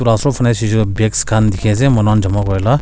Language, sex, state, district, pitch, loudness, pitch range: Nagamese, male, Nagaland, Kohima, 110 Hz, -14 LUFS, 105-120 Hz